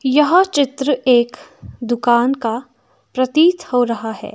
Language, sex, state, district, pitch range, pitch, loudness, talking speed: Hindi, female, Himachal Pradesh, Shimla, 240-285 Hz, 255 Hz, -16 LUFS, 125 wpm